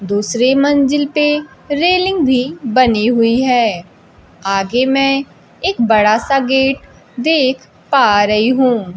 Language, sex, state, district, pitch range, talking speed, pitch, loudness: Hindi, female, Bihar, Kaimur, 225-280 Hz, 120 wpm, 255 Hz, -14 LUFS